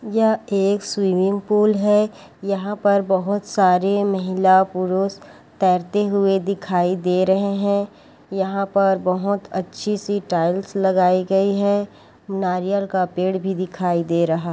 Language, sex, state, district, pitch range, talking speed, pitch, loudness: Chhattisgarhi, female, Chhattisgarh, Korba, 185-200 Hz, 140 wpm, 195 Hz, -20 LUFS